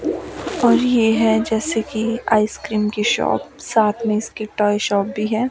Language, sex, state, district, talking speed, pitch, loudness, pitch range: Hindi, female, Himachal Pradesh, Shimla, 175 wpm, 220 Hz, -19 LUFS, 210-230 Hz